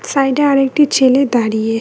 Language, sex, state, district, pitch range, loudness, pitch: Bengali, female, West Bengal, Cooch Behar, 240-280 Hz, -13 LUFS, 270 Hz